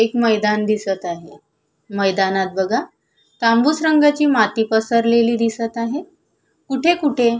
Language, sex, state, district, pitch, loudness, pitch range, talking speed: Marathi, female, Maharashtra, Sindhudurg, 230 Hz, -18 LUFS, 205-265 Hz, 115 wpm